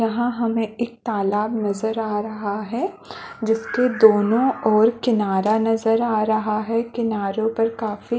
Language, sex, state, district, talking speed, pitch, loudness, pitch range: Hindi, female, Chhattisgarh, Balrampur, 140 wpm, 225 Hz, -21 LUFS, 215-230 Hz